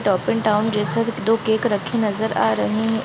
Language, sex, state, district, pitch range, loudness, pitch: Hindi, female, Uttar Pradesh, Jalaun, 205-225 Hz, -20 LUFS, 220 Hz